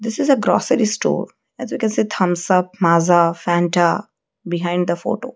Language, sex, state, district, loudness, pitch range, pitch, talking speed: English, female, Odisha, Malkangiri, -18 LUFS, 175-215 Hz, 180 Hz, 180 wpm